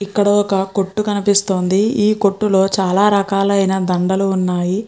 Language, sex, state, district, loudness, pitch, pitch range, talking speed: Telugu, female, Andhra Pradesh, Chittoor, -16 LUFS, 195 Hz, 190-205 Hz, 135 wpm